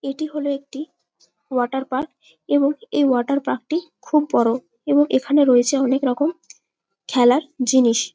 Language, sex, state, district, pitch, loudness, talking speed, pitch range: Bengali, female, West Bengal, Jalpaiguri, 275 Hz, -20 LUFS, 140 wpm, 255-295 Hz